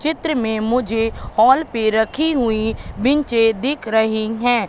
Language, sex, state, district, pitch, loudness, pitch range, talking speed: Hindi, female, Madhya Pradesh, Katni, 230 Hz, -18 LUFS, 220-275 Hz, 140 wpm